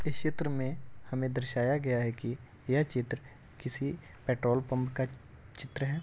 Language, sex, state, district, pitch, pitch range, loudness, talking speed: Hindi, male, Uttar Pradesh, Deoria, 130 Hz, 120-140 Hz, -34 LUFS, 160 wpm